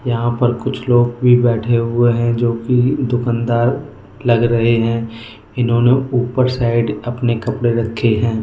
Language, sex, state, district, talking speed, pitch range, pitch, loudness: Hindi, male, Goa, North and South Goa, 150 wpm, 115-125 Hz, 120 Hz, -16 LUFS